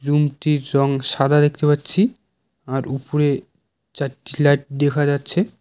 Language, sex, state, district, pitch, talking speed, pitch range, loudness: Bengali, male, West Bengal, Cooch Behar, 145 Hz, 130 wpm, 140-150 Hz, -19 LUFS